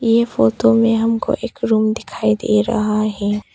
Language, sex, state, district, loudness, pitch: Hindi, female, Arunachal Pradesh, Longding, -17 LUFS, 215 Hz